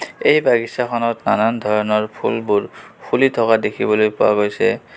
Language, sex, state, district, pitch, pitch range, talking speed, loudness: Assamese, male, Assam, Kamrup Metropolitan, 110 Hz, 105-115 Hz, 135 wpm, -17 LUFS